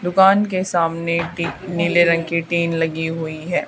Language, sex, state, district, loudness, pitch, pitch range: Hindi, female, Haryana, Charkhi Dadri, -19 LUFS, 170 Hz, 165-175 Hz